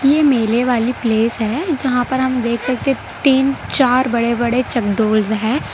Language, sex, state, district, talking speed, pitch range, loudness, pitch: Hindi, female, Gujarat, Valsad, 180 wpm, 235-265 Hz, -16 LUFS, 245 Hz